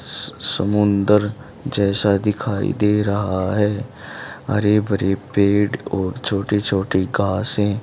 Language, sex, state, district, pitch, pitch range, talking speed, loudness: Hindi, male, Haryana, Charkhi Dadri, 105 Hz, 100-105 Hz, 105 wpm, -18 LUFS